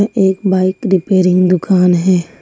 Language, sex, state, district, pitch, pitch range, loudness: Hindi, female, Jharkhand, Ranchi, 185 Hz, 180-190 Hz, -13 LUFS